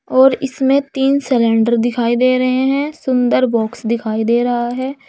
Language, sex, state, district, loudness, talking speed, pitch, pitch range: Hindi, female, Uttar Pradesh, Saharanpur, -15 LUFS, 165 wpm, 255 Hz, 235-270 Hz